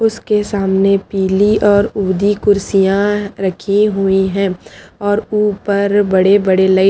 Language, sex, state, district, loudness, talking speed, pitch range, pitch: Hindi, female, Haryana, Charkhi Dadri, -14 LUFS, 130 wpm, 195-205 Hz, 200 Hz